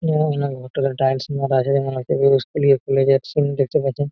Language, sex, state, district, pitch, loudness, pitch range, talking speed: Bengali, male, West Bengal, Malda, 135 Hz, -19 LUFS, 135-140 Hz, 190 wpm